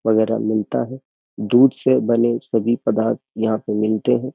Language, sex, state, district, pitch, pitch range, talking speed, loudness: Hindi, male, Uttar Pradesh, Jyotiba Phule Nagar, 115 Hz, 110-130 Hz, 165 wpm, -19 LUFS